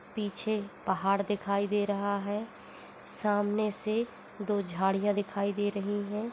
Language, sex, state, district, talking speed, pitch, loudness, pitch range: Hindi, female, Chhattisgarh, Korba, 130 wpm, 205 Hz, -31 LUFS, 200-210 Hz